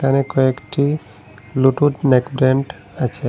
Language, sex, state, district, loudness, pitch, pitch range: Bengali, male, Assam, Hailakandi, -18 LUFS, 130 Hz, 125-140 Hz